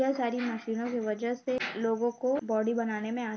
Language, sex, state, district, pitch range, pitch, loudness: Hindi, female, Uttar Pradesh, Etah, 225-245 Hz, 235 Hz, -31 LUFS